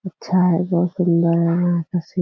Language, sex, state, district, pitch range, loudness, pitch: Hindi, female, Bihar, Purnia, 170-180 Hz, -19 LUFS, 175 Hz